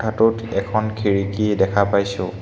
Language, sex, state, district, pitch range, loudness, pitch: Assamese, male, Assam, Hailakandi, 100-110 Hz, -20 LUFS, 100 Hz